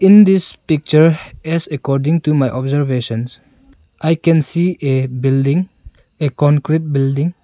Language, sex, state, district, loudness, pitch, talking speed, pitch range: English, male, Arunachal Pradesh, Longding, -15 LUFS, 145 Hz, 130 wpm, 135-165 Hz